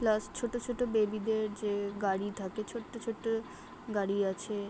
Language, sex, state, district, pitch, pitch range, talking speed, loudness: Bengali, female, West Bengal, Dakshin Dinajpur, 215 Hz, 205-230 Hz, 205 wpm, -34 LUFS